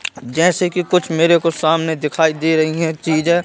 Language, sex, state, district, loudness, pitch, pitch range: Hindi, male, Madhya Pradesh, Katni, -16 LUFS, 165 Hz, 160-175 Hz